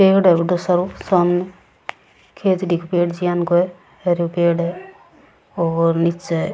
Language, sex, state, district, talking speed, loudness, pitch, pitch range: Rajasthani, female, Rajasthan, Churu, 155 wpm, -18 LUFS, 175 Hz, 170-185 Hz